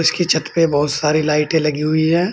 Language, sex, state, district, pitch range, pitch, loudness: Hindi, male, Uttar Pradesh, Saharanpur, 150-165 Hz, 155 Hz, -17 LUFS